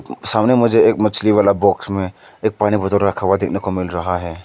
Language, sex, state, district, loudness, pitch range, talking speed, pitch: Hindi, male, Arunachal Pradesh, Lower Dibang Valley, -16 LUFS, 95-105 Hz, 230 wpm, 100 Hz